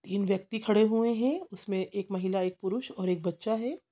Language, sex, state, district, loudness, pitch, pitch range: Hindi, female, Chhattisgarh, Sukma, -30 LUFS, 200 Hz, 190-225 Hz